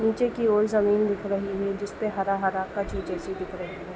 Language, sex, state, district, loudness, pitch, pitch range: Hindi, female, Bihar, Sitamarhi, -26 LUFS, 200 Hz, 190-210 Hz